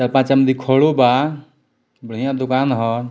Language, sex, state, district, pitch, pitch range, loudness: Bhojpuri, male, Bihar, Muzaffarpur, 130 Hz, 125-135 Hz, -17 LUFS